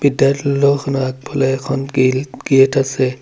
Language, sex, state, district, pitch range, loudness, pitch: Assamese, male, Assam, Sonitpur, 130-140 Hz, -16 LUFS, 135 Hz